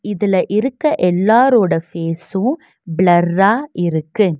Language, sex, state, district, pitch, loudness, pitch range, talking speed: Tamil, female, Tamil Nadu, Nilgiris, 190 Hz, -15 LUFS, 175-220 Hz, 80 wpm